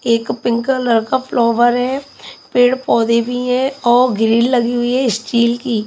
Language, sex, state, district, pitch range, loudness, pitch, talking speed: Hindi, female, Punjab, Kapurthala, 235-255 Hz, -15 LUFS, 240 Hz, 175 wpm